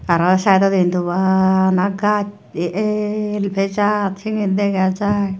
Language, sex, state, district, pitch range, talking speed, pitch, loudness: Chakma, female, Tripura, Dhalai, 190-205 Hz, 120 wpm, 195 Hz, -18 LUFS